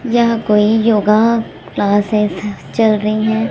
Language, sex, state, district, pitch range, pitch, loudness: Hindi, female, Chhattisgarh, Raipur, 210-230 Hz, 215 Hz, -14 LUFS